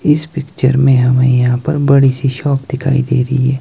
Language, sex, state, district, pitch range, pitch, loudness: Hindi, male, Himachal Pradesh, Shimla, 130-140 Hz, 135 Hz, -13 LUFS